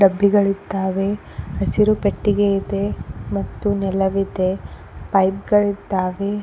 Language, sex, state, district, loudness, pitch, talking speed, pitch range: Kannada, female, Karnataka, Koppal, -20 LUFS, 195 Hz, 85 wpm, 190-205 Hz